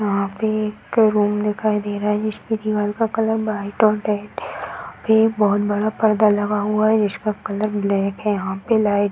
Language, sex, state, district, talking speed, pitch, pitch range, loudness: Hindi, female, Bihar, Darbhanga, 225 wpm, 210 Hz, 205-215 Hz, -20 LUFS